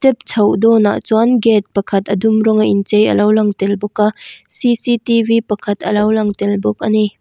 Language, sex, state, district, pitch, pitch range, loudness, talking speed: Mizo, female, Mizoram, Aizawl, 215 Hz, 205-225 Hz, -14 LUFS, 200 wpm